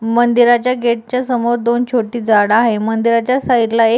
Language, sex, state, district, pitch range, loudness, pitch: Marathi, female, Maharashtra, Dhule, 225-240 Hz, -14 LUFS, 235 Hz